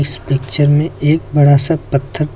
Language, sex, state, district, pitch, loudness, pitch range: Hindi, male, Uttar Pradesh, Lucknow, 145 Hz, -14 LUFS, 135-150 Hz